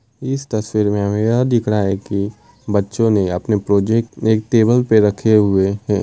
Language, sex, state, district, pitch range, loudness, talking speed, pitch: Hindi, male, Uttar Pradesh, Varanasi, 100-115 Hz, -17 LUFS, 210 wpm, 105 Hz